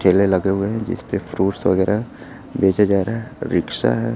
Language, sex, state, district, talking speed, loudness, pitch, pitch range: Hindi, male, Chhattisgarh, Raipur, 185 wpm, -19 LUFS, 100 Hz, 95-115 Hz